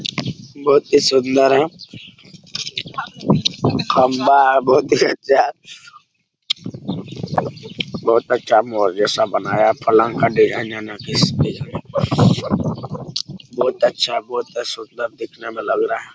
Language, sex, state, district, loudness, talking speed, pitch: Hindi, male, Bihar, Saran, -18 LUFS, 100 wpm, 135 Hz